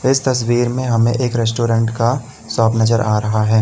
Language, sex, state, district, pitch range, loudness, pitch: Hindi, male, Uttar Pradesh, Lalitpur, 115-120 Hz, -16 LUFS, 115 Hz